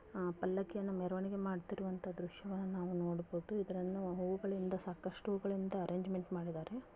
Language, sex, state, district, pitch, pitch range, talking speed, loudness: Kannada, female, Karnataka, Bijapur, 185 Hz, 180-195 Hz, 110 wpm, -41 LUFS